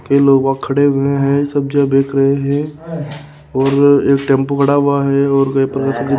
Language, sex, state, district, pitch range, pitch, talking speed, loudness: Hindi, male, Rajasthan, Jaipur, 135-145 Hz, 140 Hz, 185 wpm, -14 LUFS